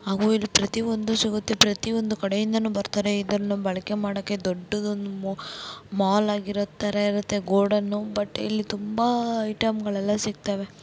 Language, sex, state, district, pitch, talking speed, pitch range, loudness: Kannada, female, Karnataka, Belgaum, 205 Hz, 115 wpm, 200-215 Hz, -25 LUFS